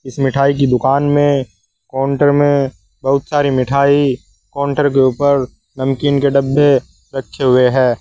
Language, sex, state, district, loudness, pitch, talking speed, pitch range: Hindi, male, Uttar Pradesh, Saharanpur, -14 LUFS, 135 Hz, 135 wpm, 130-140 Hz